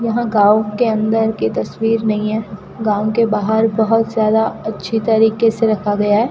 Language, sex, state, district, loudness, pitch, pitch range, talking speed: Hindi, female, Rajasthan, Bikaner, -16 LUFS, 220 Hz, 210-225 Hz, 180 wpm